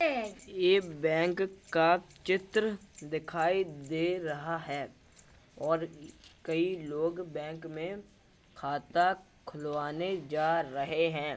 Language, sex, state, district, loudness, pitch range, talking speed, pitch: Hindi, male, Uttar Pradesh, Jalaun, -32 LUFS, 155-185 Hz, 95 wpm, 165 Hz